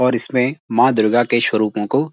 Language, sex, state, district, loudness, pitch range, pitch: Hindi, male, Uttarakhand, Uttarkashi, -16 LUFS, 110-130 Hz, 120 Hz